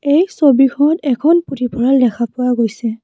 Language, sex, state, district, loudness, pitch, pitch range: Assamese, female, Assam, Kamrup Metropolitan, -14 LUFS, 265 Hz, 240-290 Hz